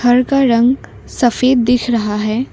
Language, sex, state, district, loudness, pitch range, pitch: Hindi, female, Assam, Kamrup Metropolitan, -14 LUFS, 235-255 Hz, 245 Hz